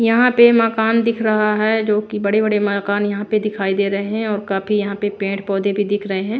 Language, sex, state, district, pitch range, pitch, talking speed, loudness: Hindi, female, Bihar, Patna, 200-220 Hz, 210 Hz, 235 wpm, -17 LUFS